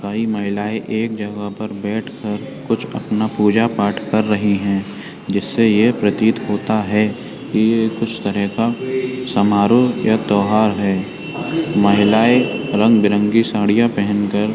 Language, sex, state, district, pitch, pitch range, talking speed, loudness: Hindi, male, Uttar Pradesh, Etah, 105 Hz, 105-115 Hz, 135 wpm, -17 LUFS